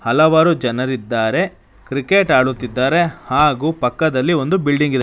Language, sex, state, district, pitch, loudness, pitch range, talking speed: Kannada, male, Karnataka, Bangalore, 140 Hz, -16 LUFS, 130-160 Hz, 105 wpm